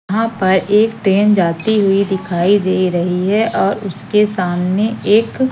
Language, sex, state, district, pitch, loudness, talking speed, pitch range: Hindi, female, Madhya Pradesh, Katni, 200 Hz, -15 LUFS, 150 wpm, 185-215 Hz